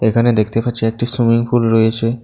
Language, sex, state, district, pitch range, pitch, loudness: Bengali, male, Tripura, South Tripura, 115-120 Hz, 115 Hz, -15 LUFS